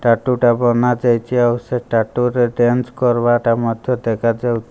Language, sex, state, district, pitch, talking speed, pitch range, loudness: Odia, male, Odisha, Malkangiri, 120 Hz, 140 wpm, 115-125 Hz, -16 LUFS